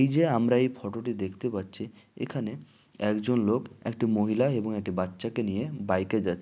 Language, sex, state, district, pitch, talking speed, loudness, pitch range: Bengali, male, West Bengal, Dakshin Dinajpur, 110 Hz, 170 wpm, -29 LUFS, 95-125 Hz